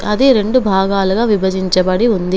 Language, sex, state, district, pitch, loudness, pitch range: Telugu, female, Telangana, Komaram Bheem, 195 Hz, -14 LUFS, 190-225 Hz